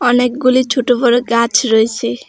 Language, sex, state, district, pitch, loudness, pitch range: Bengali, female, West Bengal, Alipurduar, 245 Hz, -13 LUFS, 235-250 Hz